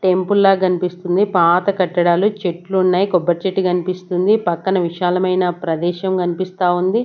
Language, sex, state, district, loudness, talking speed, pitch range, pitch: Telugu, female, Andhra Pradesh, Sri Satya Sai, -17 LUFS, 125 wpm, 175-190 Hz, 185 Hz